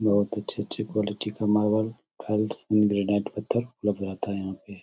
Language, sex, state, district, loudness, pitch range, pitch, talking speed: Hindi, male, Bihar, Samastipur, -27 LUFS, 100-105 Hz, 105 Hz, 160 wpm